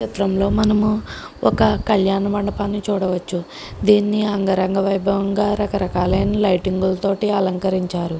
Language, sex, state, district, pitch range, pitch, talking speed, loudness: Telugu, female, Andhra Pradesh, Krishna, 190-205 Hz, 195 Hz, 100 wpm, -19 LUFS